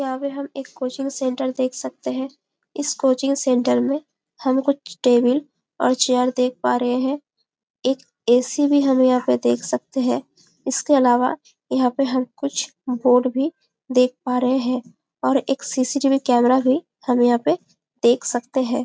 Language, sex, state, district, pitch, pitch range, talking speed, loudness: Hindi, female, Chhattisgarh, Bastar, 255 Hz, 250-275 Hz, 180 wpm, -20 LUFS